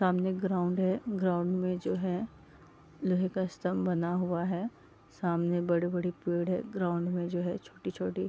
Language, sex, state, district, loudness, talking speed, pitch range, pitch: Hindi, female, Bihar, East Champaran, -32 LUFS, 165 wpm, 175-185 Hz, 180 Hz